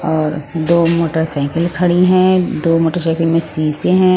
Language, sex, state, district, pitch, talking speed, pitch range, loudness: Hindi, female, Bihar, West Champaran, 165 Hz, 145 wpm, 160-175 Hz, -14 LUFS